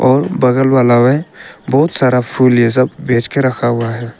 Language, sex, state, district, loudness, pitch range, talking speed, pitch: Hindi, male, Arunachal Pradesh, Papum Pare, -13 LUFS, 120-135 Hz, 200 wpm, 130 Hz